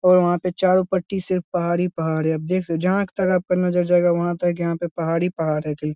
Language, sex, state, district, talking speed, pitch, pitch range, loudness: Hindi, male, Bihar, Lakhisarai, 280 wpm, 175 Hz, 170-185 Hz, -21 LUFS